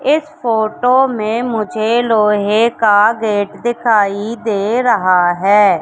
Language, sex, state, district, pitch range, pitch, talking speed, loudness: Hindi, female, Madhya Pradesh, Katni, 205-235 Hz, 220 Hz, 115 wpm, -14 LUFS